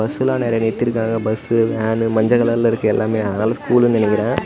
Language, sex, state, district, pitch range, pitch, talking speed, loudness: Tamil, male, Tamil Nadu, Namakkal, 110-120 Hz, 115 Hz, 160 wpm, -17 LUFS